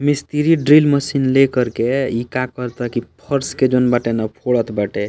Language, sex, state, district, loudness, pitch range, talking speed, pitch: Bhojpuri, male, Bihar, East Champaran, -17 LUFS, 120-140 Hz, 190 wpm, 130 Hz